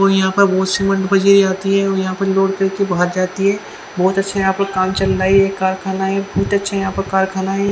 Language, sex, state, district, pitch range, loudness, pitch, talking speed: Hindi, female, Haryana, Charkhi Dadri, 190-195 Hz, -16 LUFS, 195 Hz, 250 wpm